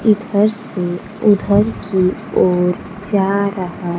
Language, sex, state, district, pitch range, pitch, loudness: Hindi, female, Bihar, Kaimur, 180-210 Hz, 200 Hz, -17 LUFS